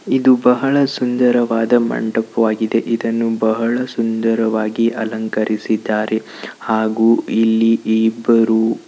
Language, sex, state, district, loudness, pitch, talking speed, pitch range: Kannada, male, Karnataka, Bijapur, -16 LUFS, 115 Hz, 80 wpm, 110-115 Hz